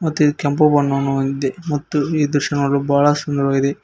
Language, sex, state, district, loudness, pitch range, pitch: Kannada, male, Karnataka, Koppal, -18 LUFS, 140-150 Hz, 145 Hz